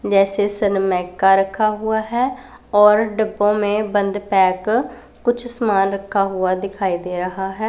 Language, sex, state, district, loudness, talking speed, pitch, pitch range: Hindi, female, Punjab, Pathankot, -18 LUFS, 140 wpm, 205 Hz, 195-220 Hz